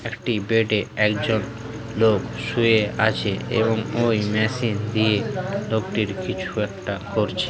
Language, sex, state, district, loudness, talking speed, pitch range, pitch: Bengali, male, West Bengal, Dakshin Dinajpur, -22 LUFS, 95 wpm, 105-115 Hz, 110 Hz